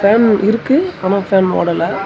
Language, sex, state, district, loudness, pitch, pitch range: Tamil, male, Tamil Nadu, Namakkal, -14 LUFS, 200 Hz, 190-225 Hz